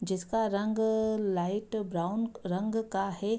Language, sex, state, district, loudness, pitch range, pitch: Hindi, female, Bihar, Madhepura, -31 LUFS, 195-220 Hz, 210 Hz